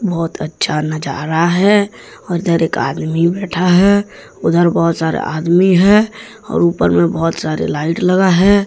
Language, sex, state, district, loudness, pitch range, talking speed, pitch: Hindi, male, Jharkhand, Deoghar, -14 LUFS, 160-195 Hz, 160 wpm, 170 Hz